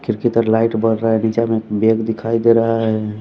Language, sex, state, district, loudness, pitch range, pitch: Hindi, male, Bihar, West Champaran, -16 LUFS, 110-115 Hz, 115 Hz